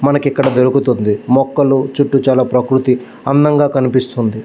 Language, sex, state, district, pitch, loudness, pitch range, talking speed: Telugu, male, Andhra Pradesh, Visakhapatnam, 130 Hz, -13 LUFS, 125-140 Hz, 175 wpm